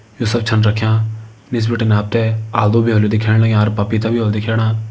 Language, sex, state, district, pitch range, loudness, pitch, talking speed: Garhwali, male, Uttarakhand, Uttarkashi, 110-115 Hz, -16 LUFS, 110 Hz, 220 wpm